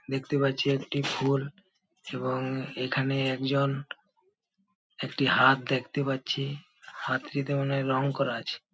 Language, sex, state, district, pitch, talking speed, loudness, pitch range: Bengali, male, West Bengal, Paschim Medinipur, 140 Hz, 115 wpm, -28 LUFS, 135-140 Hz